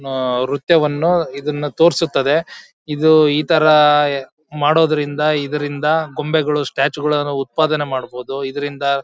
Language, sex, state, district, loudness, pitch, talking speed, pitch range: Kannada, male, Karnataka, Bellary, -16 LUFS, 150 Hz, 100 wpm, 140-155 Hz